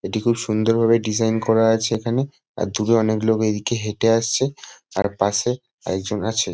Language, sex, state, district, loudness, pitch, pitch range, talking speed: Bengali, male, West Bengal, Kolkata, -21 LUFS, 115 Hz, 110-115 Hz, 185 wpm